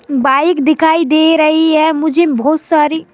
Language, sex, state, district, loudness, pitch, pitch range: Hindi, male, Madhya Pradesh, Bhopal, -11 LUFS, 310 Hz, 300-320 Hz